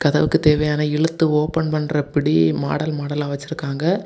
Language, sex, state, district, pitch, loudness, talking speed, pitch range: Tamil, male, Tamil Nadu, Kanyakumari, 150 Hz, -19 LUFS, 135 wpm, 145-155 Hz